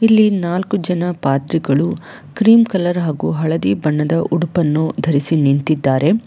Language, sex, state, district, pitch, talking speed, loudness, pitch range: Kannada, female, Karnataka, Bangalore, 165 Hz, 115 wpm, -16 LUFS, 150-180 Hz